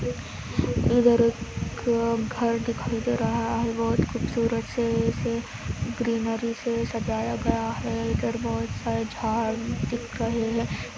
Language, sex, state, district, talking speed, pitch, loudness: Hindi, female, Andhra Pradesh, Anantapur, 135 wpm, 225 Hz, -26 LUFS